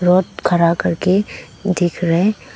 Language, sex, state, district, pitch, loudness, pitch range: Hindi, female, Arunachal Pradesh, Papum Pare, 180 Hz, -17 LUFS, 175-190 Hz